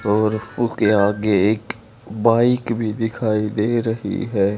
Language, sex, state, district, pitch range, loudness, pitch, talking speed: Hindi, male, Haryana, Charkhi Dadri, 105-115 Hz, -19 LUFS, 110 Hz, 130 wpm